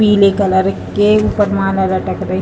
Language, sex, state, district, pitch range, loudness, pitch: Hindi, female, Bihar, Jahanabad, 190-205 Hz, -14 LUFS, 195 Hz